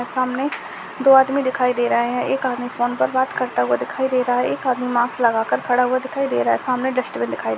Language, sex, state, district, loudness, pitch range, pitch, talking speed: Hindi, female, Chhattisgarh, Jashpur, -20 LUFS, 240-260 Hz, 250 Hz, 245 wpm